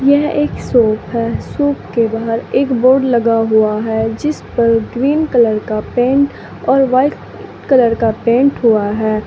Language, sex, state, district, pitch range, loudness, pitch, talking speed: Hindi, female, Uttar Pradesh, Saharanpur, 225-270 Hz, -14 LUFS, 235 Hz, 155 wpm